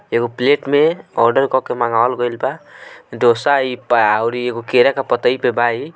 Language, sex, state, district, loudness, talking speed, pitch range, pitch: Hindi, male, Bihar, Gopalganj, -16 LUFS, 100 wpm, 120-135 Hz, 125 Hz